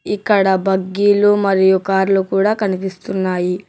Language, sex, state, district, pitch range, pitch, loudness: Telugu, male, Telangana, Hyderabad, 190-205 Hz, 195 Hz, -15 LUFS